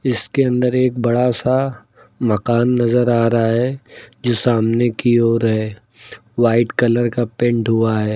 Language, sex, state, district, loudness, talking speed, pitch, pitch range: Hindi, male, Uttar Pradesh, Lucknow, -17 LUFS, 155 wpm, 120 Hz, 115-125 Hz